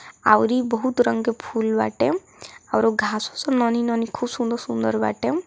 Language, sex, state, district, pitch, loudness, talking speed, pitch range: Hindi, female, Bihar, East Champaran, 235 Hz, -22 LUFS, 175 wpm, 215-250 Hz